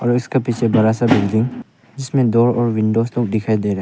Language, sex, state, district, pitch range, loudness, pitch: Hindi, male, Arunachal Pradesh, Papum Pare, 110-120 Hz, -17 LUFS, 115 Hz